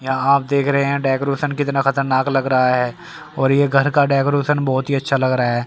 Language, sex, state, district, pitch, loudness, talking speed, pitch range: Hindi, male, Haryana, Rohtak, 135 Hz, -17 LUFS, 235 wpm, 130-140 Hz